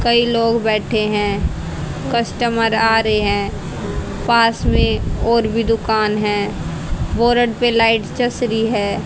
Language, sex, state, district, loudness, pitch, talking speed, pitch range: Hindi, female, Haryana, Rohtak, -17 LUFS, 225 Hz, 135 wpm, 215-235 Hz